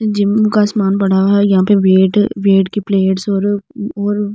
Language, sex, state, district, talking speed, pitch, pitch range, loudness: Hindi, female, Delhi, New Delhi, 220 wpm, 200 Hz, 195-205 Hz, -13 LUFS